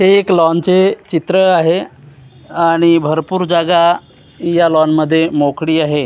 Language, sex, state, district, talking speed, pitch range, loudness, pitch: Marathi, male, Maharashtra, Gondia, 140 wpm, 155-180 Hz, -13 LUFS, 165 Hz